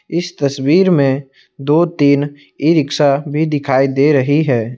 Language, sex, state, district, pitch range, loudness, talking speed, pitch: Hindi, male, Assam, Kamrup Metropolitan, 135-155 Hz, -14 LUFS, 150 wpm, 145 Hz